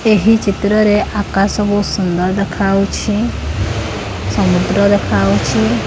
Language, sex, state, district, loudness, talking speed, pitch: Odia, female, Odisha, Khordha, -15 LUFS, 90 wpm, 195 Hz